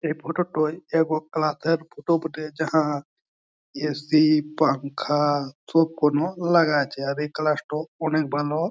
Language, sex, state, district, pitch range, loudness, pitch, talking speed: Bengali, male, West Bengal, Jhargram, 150-160 Hz, -24 LUFS, 155 Hz, 145 wpm